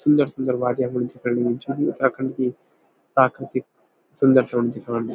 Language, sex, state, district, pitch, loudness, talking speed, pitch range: Garhwali, male, Uttarakhand, Uttarkashi, 125 Hz, -22 LUFS, 185 wpm, 120-130 Hz